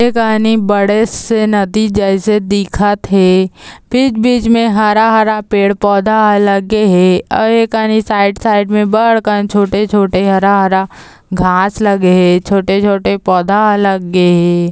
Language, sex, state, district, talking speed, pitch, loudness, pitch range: Chhattisgarhi, female, Chhattisgarh, Balrampur, 135 wpm, 205 Hz, -11 LUFS, 195-215 Hz